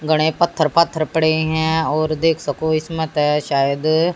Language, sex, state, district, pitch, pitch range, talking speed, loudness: Hindi, female, Haryana, Jhajjar, 155 Hz, 155-160 Hz, 160 wpm, -18 LUFS